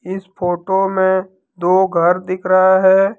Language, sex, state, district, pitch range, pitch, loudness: Hindi, male, Jharkhand, Deoghar, 180-190 Hz, 190 Hz, -15 LUFS